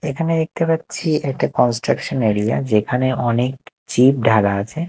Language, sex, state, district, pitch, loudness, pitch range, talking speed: Bengali, male, Odisha, Nuapada, 130 Hz, -18 LUFS, 115-155 Hz, 135 wpm